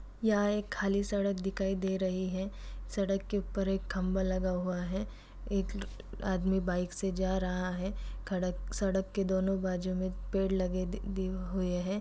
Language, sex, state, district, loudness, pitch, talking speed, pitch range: Hindi, female, Bihar, East Champaran, -33 LUFS, 190 Hz, 170 wpm, 185-195 Hz